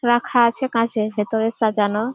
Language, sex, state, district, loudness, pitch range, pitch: Bengali, female, West Bengal, Malda, -20 LUFS, 215-240 Hz, 225 Hz